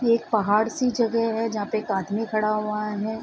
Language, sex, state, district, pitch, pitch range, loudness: Hindi, female, Bihar, Bhagalpur, 220 Hz, 210-230 Hz, -24 LUFS